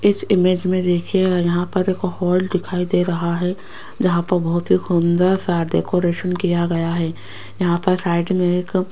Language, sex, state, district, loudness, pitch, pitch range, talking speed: Hindi, female, Rajasthan, Jaipur, -19 LUFS, 180 Hz, 175-185 Hz, 190 wpm